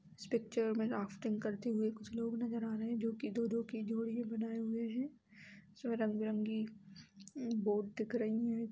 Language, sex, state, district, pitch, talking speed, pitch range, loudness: Hindi, female, Bihar, Sitamarhi, 225 Hz, 180 wpm, 215-230 Hz, -39 LUFS